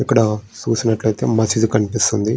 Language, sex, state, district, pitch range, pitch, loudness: Telugu, male, Andhra Pradesh, Srikakulam, 110-115 Hz, 110 Hz, -18 LUFS